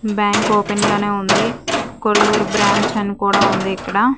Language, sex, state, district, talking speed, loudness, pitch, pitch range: Telugu, female, Andhra Pradesh, Manyam, 145 wpm, -16 LUFS, 205 Hz, 200-215 Hz